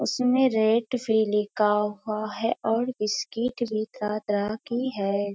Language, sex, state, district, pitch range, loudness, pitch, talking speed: Hindi, female, Bihar, Kishanganj, 210-240 Hz, -26 LUFS, 220 Hz, 125 wpm